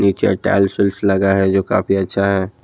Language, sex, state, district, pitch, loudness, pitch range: Hindi, male, Himachal Pradesh, Shimla, 100 Hz, -16 LUFS, 95-100 Hz